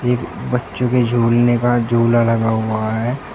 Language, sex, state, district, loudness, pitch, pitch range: Hindi, male, Uttar Pradesh, Shamli, -17 LUFS, 120 Hz, 115-120 Hz